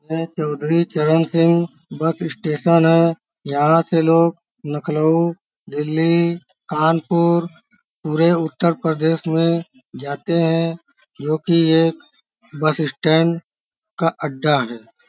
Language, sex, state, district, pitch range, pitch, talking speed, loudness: Hindi, male, Uttar Pradesh, Varanasi, 155-170 Hz, 165 Hz, 105 wpm, -18 LUFS